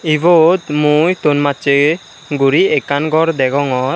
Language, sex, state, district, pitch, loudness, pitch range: Chakma, male, Tripura, Unakoti, 150 Hz, -13 LUFS, 140-160 Hz